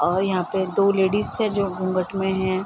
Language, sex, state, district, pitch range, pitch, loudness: Hindi, female, Bihar, Sitamarhi, 185-200 Hz, 190 Hz, -22 LUFS